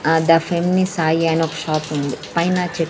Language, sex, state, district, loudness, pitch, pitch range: Telugu, female, Andhra Pradesh, Sri Satya Sai, -18 LUFS, 165 Hz, 160-170 Hz